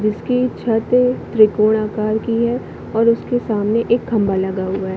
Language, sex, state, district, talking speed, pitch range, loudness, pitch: Hindi, female, Chhattisgarh, Bilaspur, 170 wpm, 215-235 Hz, -17 LUFS, 220 Hz